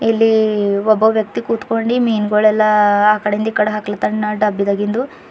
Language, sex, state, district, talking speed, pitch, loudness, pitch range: Kannada, female, Karnataka, Bidar, 125 wpm, 215 Hz, -15 LUFS, 210-225 Hz